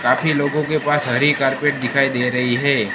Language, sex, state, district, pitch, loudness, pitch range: Hindi, male, Gujarat, Gandhinagar, 140 Hz, -18 LUFS, 125-150 Hz